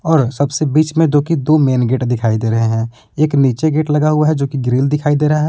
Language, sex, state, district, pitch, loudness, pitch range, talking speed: Hindi, male, Jharkhand, Palamu, 145 Hz, -15 LUFS, 130-155 Hz, 275 wpm